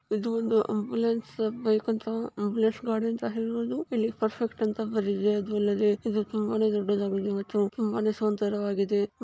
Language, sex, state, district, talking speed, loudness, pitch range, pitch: Kannada, female, Karnataka, Chamarajanagar, 85 wpm, -28 LUFS, 205-225 Hz, 215 Hz